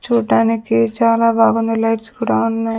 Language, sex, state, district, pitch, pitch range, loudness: Telugu, female, Andhra Pradesh, Sri Satya Sai, 230 Hz, 225-230 Hz, -16 LUFS